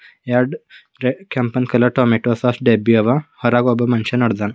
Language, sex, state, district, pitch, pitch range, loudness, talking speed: Kannada, male, Karnataka, Bidar, 120 Hz, 120-125 Hz, -17 LUFS, 145 wpm